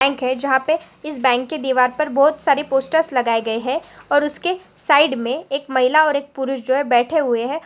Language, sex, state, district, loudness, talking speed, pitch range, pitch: Hindi, female, Maharashtra, Pune, -18 LUFS, 225 wpm, 255-305 Hz, 275 Hz